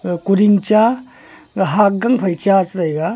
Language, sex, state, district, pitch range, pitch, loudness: Wancho, male, Arunachal Pradesh, Longding, 185-230 Hz, 200 Hz, -15 LUFS